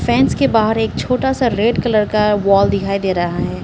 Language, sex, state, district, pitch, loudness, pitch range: Hindi, female, Arunachal Pradesh, Lower Dibang Valley, 210 Hz, -15 LUFS, 195-230 Hz